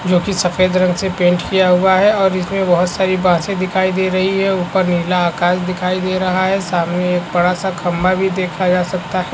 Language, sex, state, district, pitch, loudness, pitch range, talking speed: Hindi, female, Chhattisgarh, Korba, 185 Hz, -15 LUFS, 180-190 Hz, 240 wpm